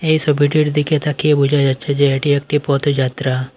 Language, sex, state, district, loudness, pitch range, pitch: Bengali, male, Assam, Hailakandi, -16 LUFS, 140-150 Hz, 145 Hz